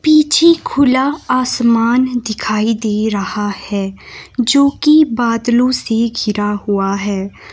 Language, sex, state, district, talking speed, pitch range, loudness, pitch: Hindi, female, Himachal Pradesh, Shimla, 105 wpm, 210-255 Hz, -14 LUFS, 230 Hz